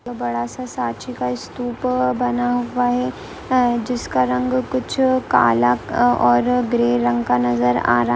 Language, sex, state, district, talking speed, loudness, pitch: Hindi, female, Andhra Pradesh, Guntur, 145 wpm, -19 LUFS, 130 Hz